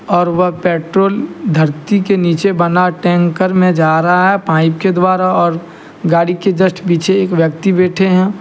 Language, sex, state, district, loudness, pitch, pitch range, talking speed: Hindi, male, Jharkhand, Deoghar, -13 LUFS, 180 Hz, 170-190 Hz, 170 wpm